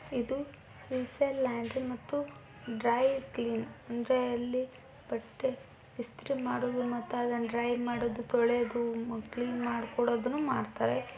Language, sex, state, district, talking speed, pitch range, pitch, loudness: Kannada, female, Karnataka, Bijapur, 105 wpm, 235-260 Hz, 245 Hz, -33 LUFS